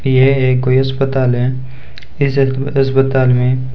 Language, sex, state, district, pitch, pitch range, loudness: Hindi, male, Rajasthan, Bikaner, 130 Hz, 130-135 Hz, -14 LUFS